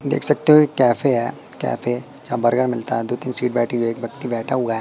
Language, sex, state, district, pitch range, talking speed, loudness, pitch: Hindi, male, Madhya Pradesh, Katni, 120-135 Hz, 275 wpm, -19 LUFS, 125 Hz